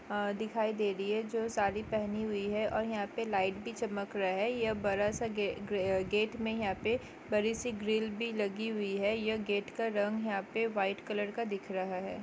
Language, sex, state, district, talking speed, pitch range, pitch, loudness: Hindi, female, Chhattisgarh, Bastar, 220 wpm, 200-220 Hz, 210 Hz, -34 LUFS